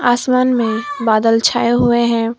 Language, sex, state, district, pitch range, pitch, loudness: Hindi, female, Jharkhand, Garhwa, 225-245 Hz, 235 Hz, -14 LUFS